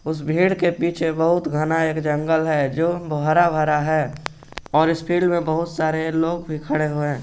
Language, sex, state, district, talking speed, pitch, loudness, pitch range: Hindi, male, Jharkhand, Garhwa, 190 wpm, 160 Hz, -20 LUFS, 150-170 Hz